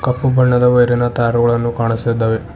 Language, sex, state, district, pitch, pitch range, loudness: Kannada, male, Karnataka, Bidar, 120 Hz, 115-125 Hz, -14 LUFS